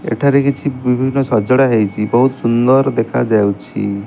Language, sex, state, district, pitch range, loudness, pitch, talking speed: Odia, male, Odisha, Malkangiri, 110-135 Hz, -14 LUFS, 125 Hz, 120 wpm